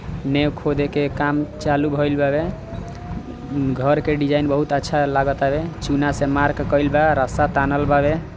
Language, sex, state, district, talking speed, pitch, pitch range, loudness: Maithili, male, Bihar, Samastipur, 150 wpm, 145 Hz, 140-150 Hz, -20 LUFS